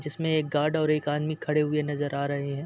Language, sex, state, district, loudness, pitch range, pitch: Hindi, male, Uttar Pradesh, Muzaffarnagar, -27 LUFS, 145-155 Hz, 150 Hz